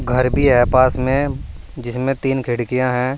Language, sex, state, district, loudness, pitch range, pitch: Hindi, male, Uttar Pradesh, Saharanpur, -17 LUFS, 125-135 Hz, 130 Hz